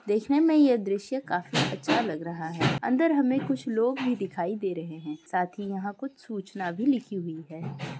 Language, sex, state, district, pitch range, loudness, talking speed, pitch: Hindi, female, Uttar Pradesh, Muzaffarnagar, 170-260 Hz, -27 LUFS, 200 wpm, 200 Hz